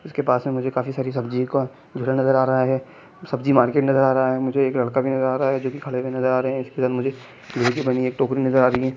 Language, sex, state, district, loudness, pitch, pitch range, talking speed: Hindi, male, Jharkhand, Jamtara, -21 LUFS, 130 Hz, 130-135 Hz, 290 wpm